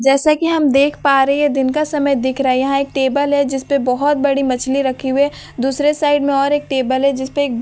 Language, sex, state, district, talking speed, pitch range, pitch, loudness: Hindi, female, Bihar, Katihar, 270 wpm, 265-290 Hz, 275 Hz, -16 LUFS